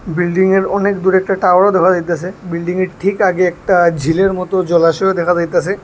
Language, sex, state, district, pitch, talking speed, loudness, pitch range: Bengali, male, Tripura, West Tripura, 185 Hz, 165 wpm, -14 LUFS, 175-190 Hz